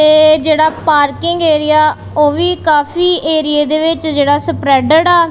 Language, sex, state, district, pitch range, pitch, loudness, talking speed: Punjabi, female, Punjab, Kapurthala, 300-330 Hz, 310 Hz, -11 LUFS, 145 wpm